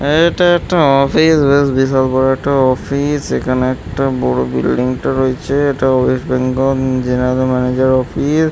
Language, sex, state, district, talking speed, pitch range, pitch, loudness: Bengali, male, West Bengal, Malda, 170 wpm, 130-140 Hz, 130 Hz, -14 LUFS